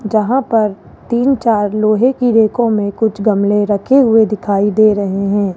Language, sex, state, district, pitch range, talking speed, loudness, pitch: Hindi, male, Rajasthan, Jaipur, 205-230 Hz, 170 wpm, -13 LUFS, 215 Hz